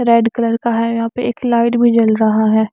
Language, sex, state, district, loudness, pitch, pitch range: Hindi, female, Maharashtra, Mumbai Suburban, -14 LUFS, 230 Hz, 225-235 Hz